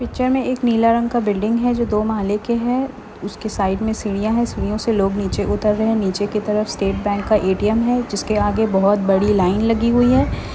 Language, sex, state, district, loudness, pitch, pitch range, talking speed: Hindi, female, Chhattisgarh, Rajnandgaon, -18 LUFS, 215 Hz, 205-235 Hz, 235 wpm